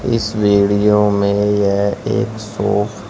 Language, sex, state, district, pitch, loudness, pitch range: Hindi, male, Uttar Pradesh, Shamli, 105 Hz, -16 LUFS, 100-105 Hz